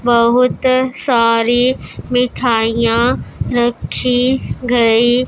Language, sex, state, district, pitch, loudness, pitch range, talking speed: Hindi, female, Punjab, Pathankot, 245 Hz, -14 LUFS, 235-250 Hz, 70 wpm